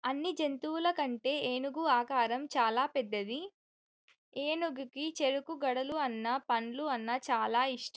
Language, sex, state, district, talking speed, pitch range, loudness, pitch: Telugu, female, Telangana, Karimnagar, 105 wpm, 245-300 Hz, -33 LUFS, 270 Hz